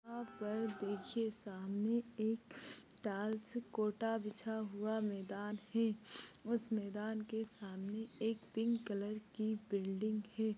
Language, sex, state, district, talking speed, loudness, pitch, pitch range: Hindi, female, Maharashtra, Nagpur, 120 wpm, -42 LUFS, 215 Hz, 205-225 Hz